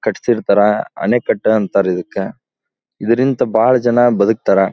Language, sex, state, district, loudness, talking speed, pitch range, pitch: Kannada, male, Karnataka, Dharwad, -15 LUFS, 100 wpm, 100-120 Hz, 110 Hz